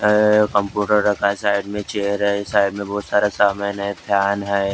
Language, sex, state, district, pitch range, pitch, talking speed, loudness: Hindi, male, Maharashtra, Gondia, 100-105 Hz, 100 Hz, 200 wpm, -19 LUFS